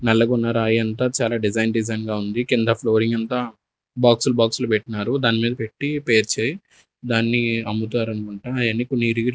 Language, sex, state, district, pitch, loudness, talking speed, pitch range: Telugu, male, Andhra Pradesh, Sri Satya Sai, 115 Hz, -21 LUFS, 140 wpm, 110-120 Hz